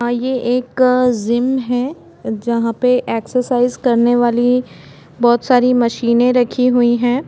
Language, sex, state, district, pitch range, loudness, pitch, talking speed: Hindi, female, Bihar, Gopalganj, 235-250 Hz, -15 LUFS, 245 Hz, 130 wpm